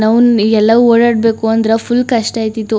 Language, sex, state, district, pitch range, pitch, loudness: Kannada, female, Karnataka, Chamarajanagar, 220-235 Hz, 225 Hz, -11 LUFS